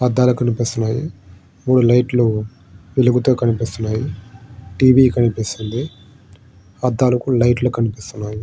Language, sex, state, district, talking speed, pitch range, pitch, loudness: Telugu, male, Andhra Pradesh, Srikakulam, 80 wpm, 110-125 Hz, 115 Hz, -17 LUFS